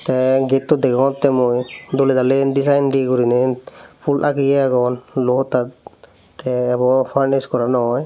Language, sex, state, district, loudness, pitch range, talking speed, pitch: Chakma, male, Tripura, Dhalai, -17 LUFS, 125-135 Hz, 150 wpm, 130 Hz